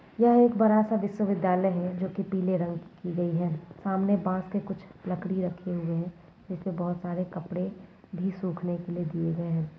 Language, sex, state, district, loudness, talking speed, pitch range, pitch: Hindi, female, Bihar, Muzaffarpur, -29 LUFS, 195 wpm, 175-195 Hz, 180 Hz